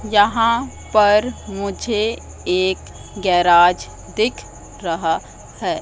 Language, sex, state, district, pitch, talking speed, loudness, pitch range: Hindi, female, Madhya Pradesh, Katni, 205 Hz, 80 wpm, -18 LUFS, 185-220 Hz